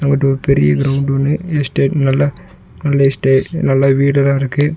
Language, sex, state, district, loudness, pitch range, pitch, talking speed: Tamil, male, Tamil Nadu, Nilgiris, -14 LUFS, 135-145 Hz, 140 Hz, 150 wpm